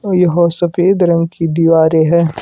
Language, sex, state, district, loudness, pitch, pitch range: Hindi, male, Himachal Pradesh, Shimla, -12 LUFS, 170 Hz, 165-175 Hz